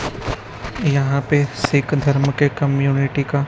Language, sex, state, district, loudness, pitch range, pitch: Hindi, male, Chhattisgarh, Raipur, -19 LUFS, 135-145 Hz, 140 Hz